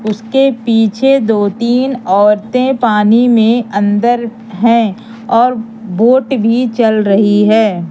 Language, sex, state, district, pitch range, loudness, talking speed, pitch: Hindi, female, Madhya Pradesh, Katni, 210-245 Hz, -11 LUFS, 115 wpm, 225 Hz